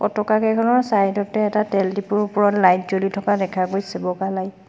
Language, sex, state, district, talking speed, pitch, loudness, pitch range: Assamese, female, Assam, Sonitpur, 205 wpm, 200 Hz, -20 LUFS, 190-210 Hz